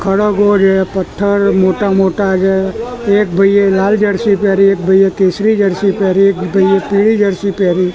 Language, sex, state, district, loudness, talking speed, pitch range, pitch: Gujarati, male, Gujarat, Gandhinagar, -12 LUFS, 160 wpm, 190-205 Hz, 195 Hz